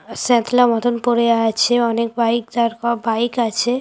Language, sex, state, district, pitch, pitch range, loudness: Bengali, female, West Bengal, Paschim Medinipur, 235 Hz, 230-240 Hz, -17 LUFS